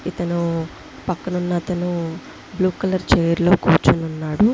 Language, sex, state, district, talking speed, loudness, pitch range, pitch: Telugu, female, Andhra Pradesh, Visakhapatnam, 145 wpm, -20 LUFS, 165-180 Hz, 175 Hz